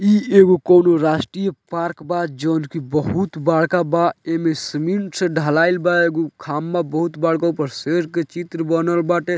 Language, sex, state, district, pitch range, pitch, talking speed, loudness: Bhojpuri, male, Bihar, Muzaffarpur, 160-175 Hz, 170 Hz, 165 wpm, -18 LUFS